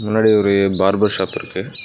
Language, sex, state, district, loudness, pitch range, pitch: Tamil, male, Tamil Nadu, Nilgiris, -17 LUFS, 95-105 Hz, 100 Hz